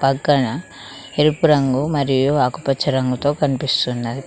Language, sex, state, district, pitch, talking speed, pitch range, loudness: Telugu, female, Telangana, Mahabubabad, 135 Hz, 100 wpm, 130-145 Hz, -18 LUFS